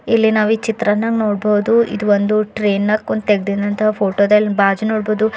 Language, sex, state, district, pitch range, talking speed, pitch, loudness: Kannada, female, Karnataka, Bidar, 205-220 Hz, 190 wpm, 210 Hz, -16 LUFS